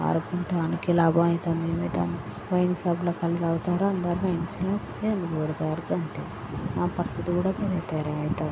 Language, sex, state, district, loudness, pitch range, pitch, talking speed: Telugu, female, Andhra Pradesh, Srikakulam, -27 LUFS, 165-180 Hz, 170 Hz, 115 wpm